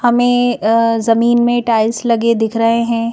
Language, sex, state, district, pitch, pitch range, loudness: Hindi, female, Madhya Pradesh, Bhopal, 230 Hz, 230-240 Hz, -14 LUFS